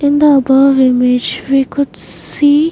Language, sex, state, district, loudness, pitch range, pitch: English, female, Maharashtra, Mumbai Suburban, -11 LUFS, 265-290 Hz, 275 Hz